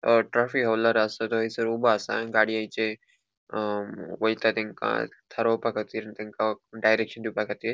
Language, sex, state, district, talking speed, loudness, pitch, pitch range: Konkani, male, Goa, North and South Goa, 115 wpm, -26 LUFS, 110 Hz, 110-115 Hz